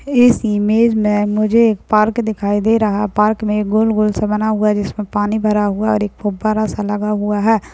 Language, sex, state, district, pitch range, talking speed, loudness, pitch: Hindi, female, Bihar, Madhepura, 210-220 Hz, 225 wpm, -16 LUFS, 210 Hz